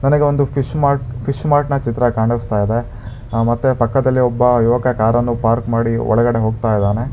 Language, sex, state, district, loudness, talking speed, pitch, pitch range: Kannada, male, Karnataka, Bangalore, -16 LUFS, 175 wpm, 120 Hz, 115-130 Hz